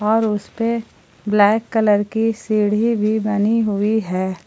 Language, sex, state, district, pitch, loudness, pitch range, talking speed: Hindi, female, Jharkhand, Palamu, 215 Hz, -18 LUFS, 205-225 Hz, 135 wpm